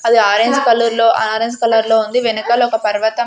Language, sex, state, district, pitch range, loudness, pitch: Telugu, female, Andhra Pradesh, Sri Satya Sai, 220-235 Hz, -14 LUFS, 230 Hz